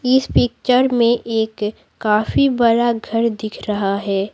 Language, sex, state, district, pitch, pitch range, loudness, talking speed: Hindi, female, Bihar, Patna, 225 Hz, 210-240 Hz, -18 LUFS, 140 wpm